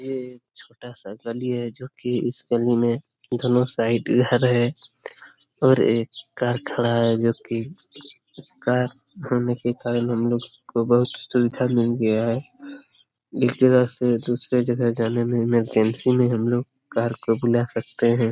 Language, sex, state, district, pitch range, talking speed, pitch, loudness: Hindi, male, Bihar, Jamui, 115-125 Hz, 160 wpm, 120 Hz, -22 LUFS